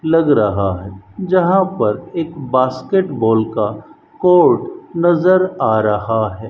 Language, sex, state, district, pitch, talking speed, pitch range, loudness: Hindi, female, Rajasthan, Bikaner, 145 Hz, 120 wpm, 110-185 Hz, -15 LUFS